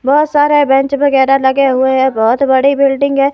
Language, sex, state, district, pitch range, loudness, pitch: Hindi, female, Himachal Pradesh, Shimla, 265-280 Hz, -11 LUFS, 275 Hz